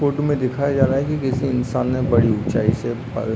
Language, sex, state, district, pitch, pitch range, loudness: Hindi, male, Uttarakhand, Uttarkashi, 130 Hz, 120-140 Hz, -20 LUFS